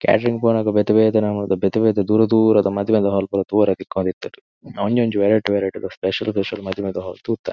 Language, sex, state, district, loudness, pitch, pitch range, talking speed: Tulu, male, Karnataka, Dakshina Kannada, -19 LUFS, 105 Hz, 100-110 Hz, 190 wpm